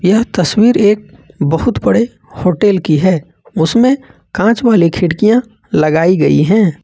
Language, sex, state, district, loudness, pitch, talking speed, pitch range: Hindi, male, Jharkhand, Ranchi, -12 LUFS, 200 Hz, 130 wpm, 170-225 Hz